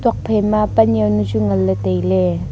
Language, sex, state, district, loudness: Wancho, female, Arunachal Pradesh, Longding, -16 LUFS